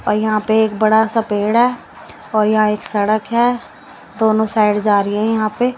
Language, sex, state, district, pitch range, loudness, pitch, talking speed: Hindi, female, Odisha, Nuapada, 210-220 Hz, -16 LUFS, 215 Hz, 220 wpm